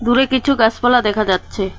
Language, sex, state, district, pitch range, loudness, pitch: Bengali, female, West Bengal, Cooch Behar, 210-250 Hz, -15 LUFS, 230 Hz